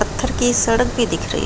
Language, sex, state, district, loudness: Hindi, female, Uttar Pradesh, Jalaun, -18 LUFS